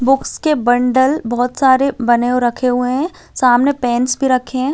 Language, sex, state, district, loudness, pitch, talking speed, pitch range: Hindi, female, Chhattisgarh, Balrampur, -15 LUFS, 255 Hz, 175 wpm, 245-270 Hz